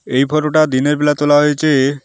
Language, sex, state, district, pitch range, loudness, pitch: Bengali, male, West Bengal, Alipurduar, 140-150 Hz, -14 LUFS, 145 Hz